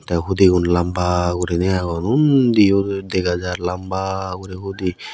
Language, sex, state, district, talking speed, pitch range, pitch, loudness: Chakma, male, Tripura, West Tripura, 130 wpm, 90-95 Hz, 95 Hz, -18 LUFS